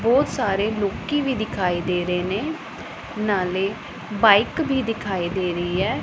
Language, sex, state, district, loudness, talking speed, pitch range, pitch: Punjabi, female, Punjab, Pathankot, -22 LUFS, 150 wpm, 180-230 Hz, 200 Hz